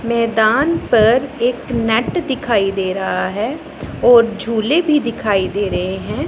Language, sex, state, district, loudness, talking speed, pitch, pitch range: Hindi, female, Punjab, Pathankot, -16 LUFS, 145 wpm, 230 Hz, 205-245 Hz